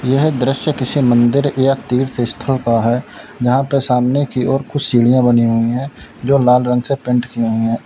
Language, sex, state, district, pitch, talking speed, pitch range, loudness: Hindi, male, Uttar Pradesh, Lalitpur, 125 Hz, 205 wpm, 120-135 Hz, -15 LUFS